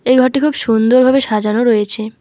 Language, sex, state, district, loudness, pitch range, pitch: Bengali, female, West Bengal, Alipurduar, -13 LUFS, 220-255 Hz, 240 Hz